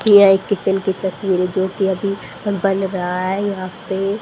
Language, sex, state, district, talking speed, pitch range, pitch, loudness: Hindi, female, Haryana, Charkhi Dadri, 185 wpm, 190-200 Hz, 195 Hz, -18 LUFS